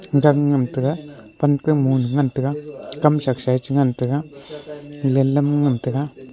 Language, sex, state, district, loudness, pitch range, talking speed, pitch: Wancho, male, Arunachal Pradesh, Longding, -20 LUFS, 130-145 Hz, 135 wpm, 140 Hz